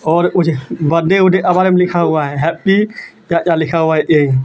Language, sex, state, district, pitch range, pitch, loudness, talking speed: Hindi, male, Jharkhand, Deoghar, 155-180 Hz, 170 Hz, -13 LUFS, 80 wpm